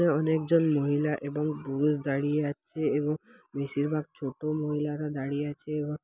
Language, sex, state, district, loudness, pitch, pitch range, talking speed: Bengali, male, West Bengal, Dakshin Dinajpur, -29 LUFS, 150 Hz, 145-150 Hz, 130 wpm